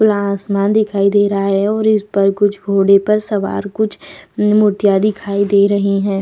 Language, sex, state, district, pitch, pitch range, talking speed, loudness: Hindi, female, Bihar, Vaishali, 200 Hz, 200-210 Hz, 195 wpm, -14 LUFS